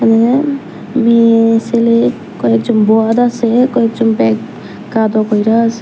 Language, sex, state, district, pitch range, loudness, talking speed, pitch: Bengali, female, Tripura, Unakoti, 225-235 Hz, -12 LUFS, 95 wpm, 230 Hz